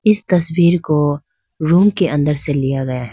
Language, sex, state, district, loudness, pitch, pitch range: Hindi, female, Arunachal Pradesh, Lower Dibang Valley, -15 LUFS, 155 Hz, 145-180 Hz